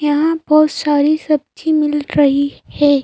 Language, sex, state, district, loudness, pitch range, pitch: Hindi, female, Madhya Pradesh, Bhopal, -15 LUFS, 290-310 Hz, 300 Hz